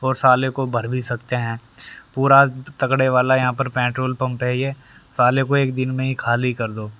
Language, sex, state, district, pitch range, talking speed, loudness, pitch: Hindi, male, Haryana, Rohtak, 125-135 Hz, 215 wpm, -19 LUFS, 130 Hz